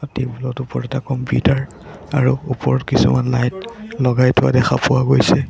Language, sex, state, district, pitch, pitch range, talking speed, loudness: Assamese, male, Assam, Sonitpur, 130 Hz, 125-135 Hz, 140 wpm, -17 LUFS